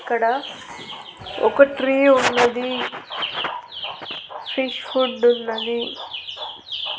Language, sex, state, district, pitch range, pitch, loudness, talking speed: Telugu, female, Andhra Pradesh, Annamaya, 240-270 Hz, 250 Hz, -21 LUFS, 60 wpm